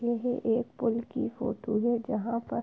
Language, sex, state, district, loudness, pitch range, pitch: Hindi, female, Uttar Pradesh, Etah, -30 LUFS, 225-240 Hz, 235 Hz